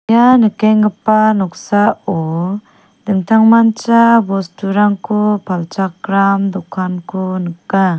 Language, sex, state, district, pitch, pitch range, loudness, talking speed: Garo, female, Meghalaya, South Garo Hills, 200 Hz, 190-215 Hz, -13 LUFS, 60 wpm